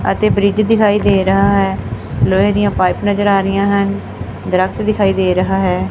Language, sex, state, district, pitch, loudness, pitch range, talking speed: Punjabi, female, Punjab, Fazilka, 195 Hz, -14 LUFS, 125-200 Hz, 180 wpm